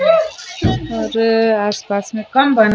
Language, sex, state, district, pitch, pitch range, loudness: Chhattisgarhi, female, Chhattisgarh, Sarguja, 225 Hz, 215-290 Hz, -17 LUFS